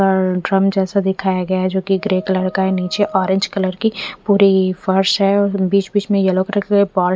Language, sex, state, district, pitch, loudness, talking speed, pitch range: Hindi, female, Punjab, Fazilka, 190 Hz, -16 LUFS, 225 wpm, 185-200 Hz